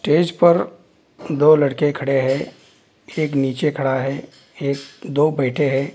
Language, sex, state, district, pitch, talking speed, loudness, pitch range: Hindi, male, Bihar, Darbhanga, 140 Hz, 140 wpm, -19 LUFS, 135-150 Hz